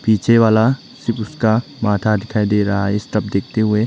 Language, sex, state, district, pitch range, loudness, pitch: Hindi, male, Arunachal Pradesh, Lower Dibang Valley, 105-115 Hz, -17 LUFS, 110 Hz